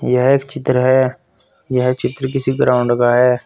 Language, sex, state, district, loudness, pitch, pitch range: Hindi, male, Uttar Pradesh, Saharanpur, -16 LUFS, 130 Hz, 125-130 Hz